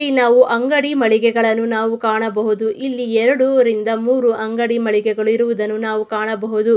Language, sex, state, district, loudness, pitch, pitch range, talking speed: Kannada, female, Karnataka, Mysore, -16 LUFS, 225 Hz, 220-240 Hz, 125 wpm